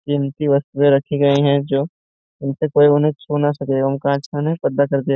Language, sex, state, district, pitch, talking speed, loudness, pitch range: Hindi, male, Jharkhand, Jamtara, 140 Hz, 185 wpm, -18 LUFS, 140-145 Hz